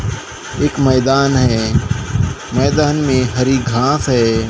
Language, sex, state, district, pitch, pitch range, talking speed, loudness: Hindi, male, Maharashtra, Gondia, 130 Hz, 125-140 Hz, 105 wpm, -15 LUFS